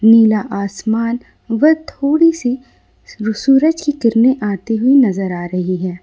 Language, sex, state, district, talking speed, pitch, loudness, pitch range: Hindi, female, Jharkhand, Ranchi, 140 wpm, 230 Hz, -15 LUFS, 200-270 Hz